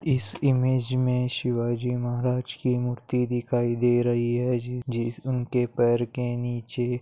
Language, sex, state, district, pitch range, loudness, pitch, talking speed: Hindi, male, Maharashtra, Pune, 120-125 Hz, -26 LUFS, 125 Hz, 145 wpm